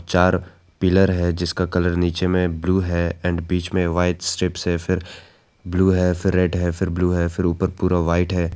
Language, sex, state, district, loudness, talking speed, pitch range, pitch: Hindi, male, Arunachal Pradesh, Lower Dibang Valley, -20 LUFS, 205 wpm, 85-90 Hz, 90 Hz